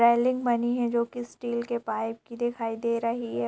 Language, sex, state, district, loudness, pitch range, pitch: Hindi, female, Bihar, Gaya, -28 LUFS, 230-240 Hz, 235 Hz